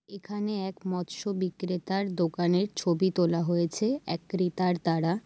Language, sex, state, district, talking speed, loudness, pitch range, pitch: Bengali, female, West Bengal, Jalpaiguri, 135 wpm, -29 LUFS, 175-195 Hz, 185 Hz